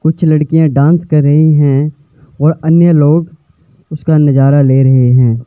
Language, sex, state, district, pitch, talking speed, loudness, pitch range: Hindi, male, Himachal Pradesh, Shimla, 150 Hz, 155 wpm, -9 LUFS, 140-160 Hz